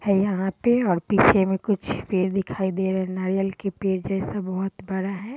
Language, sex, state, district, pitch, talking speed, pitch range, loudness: Hindi, female, Bihar, Muzaffarpur, 195 Hz, 210 wpm, 190-200 Hz, -24 LUFS